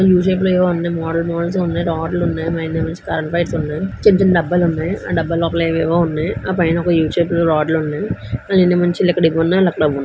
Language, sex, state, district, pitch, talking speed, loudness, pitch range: Telugu, female, Andhra Pradesh, Visakhapatnam, 170 Hz, 190 wpm, -17 LUFS, 165-180 Hz